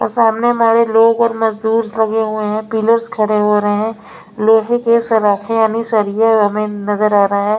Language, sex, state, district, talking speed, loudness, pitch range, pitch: Hindi, female, Maharashtra, Mumbai Suburban, 190 wpm, -14 LUFS, 210-230 Hz, 220 Hz